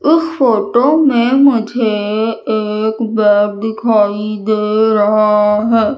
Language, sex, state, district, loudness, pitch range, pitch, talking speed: Hindi, female, Madhya Pradesh, Umaria, -13 LUFS, 210-235 Hz, 220 Hz, 100 wpm